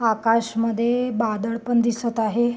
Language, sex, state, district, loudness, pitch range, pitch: Marathi, female, Maharashtra, Sindhudurg, -22 LUFS, 225-235 Hz, 230 Hz